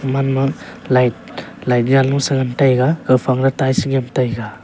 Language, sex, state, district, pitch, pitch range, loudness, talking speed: Wancho, male, Arunachal Pradesh, Longding, 130 Hz, 125-135 Hz, -16 LUFS, 170 wpm